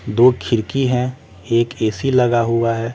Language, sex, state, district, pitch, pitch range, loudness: Hindi, male, Bihar, West Champaran, 115 Hz, 115-125 Hz, -17 LUFS